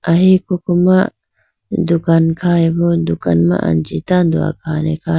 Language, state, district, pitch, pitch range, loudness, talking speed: Idu Mishmi, Arunachal Pradesh, Lower Dibang Valley, 165 Hz, 155-175 Hz, -15 LUFS, 150 wpm